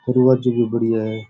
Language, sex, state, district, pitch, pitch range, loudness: Rajasthani, male, Rajasthan, Churu, 120 Hz, 110-125 Hz, -18 LUFS